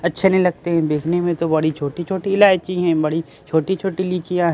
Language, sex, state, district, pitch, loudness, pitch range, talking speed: Hindi, male, Bihar, Katihar, 175 Hz, -19 LUFS, 160-185 Hz, 200 wpm